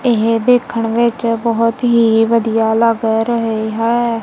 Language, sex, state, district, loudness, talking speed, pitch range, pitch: Punjabi, female, Punjab, Kapurthala, -14 LUFS, 125 wpm, 225-235 Hz, 230 Hz